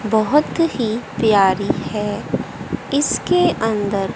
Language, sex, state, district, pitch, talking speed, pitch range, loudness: Hindi, female, Haryana, Jhajjar, 220 Hz, 85 wpm, 205-285 Hz, -18 LUFS